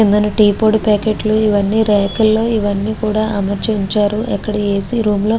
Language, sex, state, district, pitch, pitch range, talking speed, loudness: Telugu, female, Andhra Pradesh, Guntur, 215 Hz, 205-220 Hz, 180 wpm, -15 LUFS